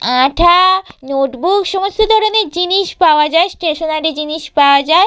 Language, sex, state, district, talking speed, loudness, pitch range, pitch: Bengali, female, West Bengal, Purulia, 130 wpm, -12 LUFS, 300-380 Hz, 335 Hz